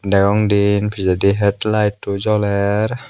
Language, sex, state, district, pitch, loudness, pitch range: Chakma, male, Tripura, Unakoti, 100 Hz, -16 LUFS, 100-105 Hz